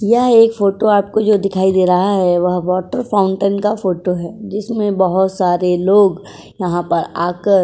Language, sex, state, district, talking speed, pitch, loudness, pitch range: Hindi, female, Uttar Pradesh, Jyotiba Phule Nagar, 180 wpm, 190 Hz, -15 LUFS, 180-205 Hz